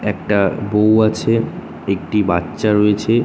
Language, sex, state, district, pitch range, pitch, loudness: Bengali, male, West Bengal, North 24 Parganas, 105-110 Hz, 105 Hz, -16 LUFS